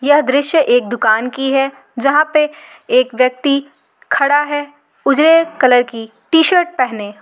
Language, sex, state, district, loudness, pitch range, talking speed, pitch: Hindi, female, Jharkhand, Garhwa, -14 LUFS, 250-300 Hz, 140 wpm, 275 Hz